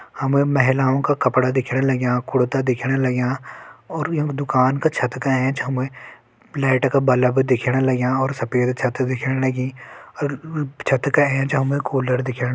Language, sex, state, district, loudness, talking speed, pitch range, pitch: Hindi, male, Uttarakhand, Tehri Garhwal, -20 LUFS, 165 wpm, 130-140 Hz, 130 Hz